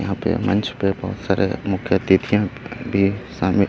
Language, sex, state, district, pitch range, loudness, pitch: Hindi, male, Chhattisgarh, Raipur, 95-110 Hz, -21 LUFS, 100 Hz